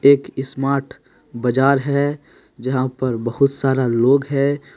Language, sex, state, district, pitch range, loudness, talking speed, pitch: Hindi, male, Jharkhand, Deoghar, 130-140 Hz, -19 LUFS, 125 wpm, 135 Hz